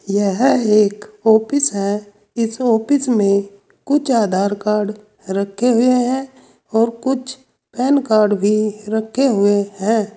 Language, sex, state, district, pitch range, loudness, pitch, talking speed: Hindi, male, Uttar Pradesh, Saharanpur, 205-250 Hz, -17 LUFS, 220 Hz, 125 wpm